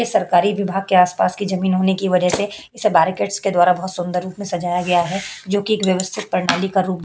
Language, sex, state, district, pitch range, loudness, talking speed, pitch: Hindi, female, Uttar Pradesh, Hamirpur, 180-195 Hz, -18 LUFS, 255 wpm, 185 Hz